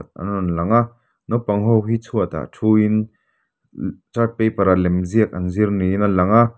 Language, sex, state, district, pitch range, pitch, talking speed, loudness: Mizo, male, Mizoram, Aizawl, 95-115 Hz, 105 Hz, 165 wpm, -19 LUFS